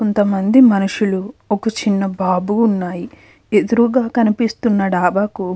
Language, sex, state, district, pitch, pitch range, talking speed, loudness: Telugu, female, Andhra Pradesh, Krishna, 205 Hz, 195-230 Hz, 110 wpm, -16 LUFS